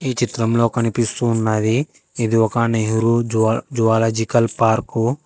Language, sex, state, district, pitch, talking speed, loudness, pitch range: Telugu, male, Telangana, Hyderabad, 115 Hz, 115 wpm, -18 LUFS, 110-120 Hz